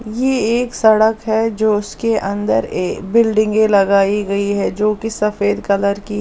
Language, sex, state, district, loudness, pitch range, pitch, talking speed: Hindi, female, Punjab, Pathankot, -16 LUFS, 205-225 Hz, 215 Hz, 165 wpm